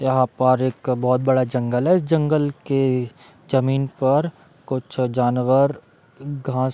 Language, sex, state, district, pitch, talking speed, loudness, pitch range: Hindi, male, Bihar, Darbhanga, 130 Hz, 140 wpm, -20 LUFS, 125-140 Hz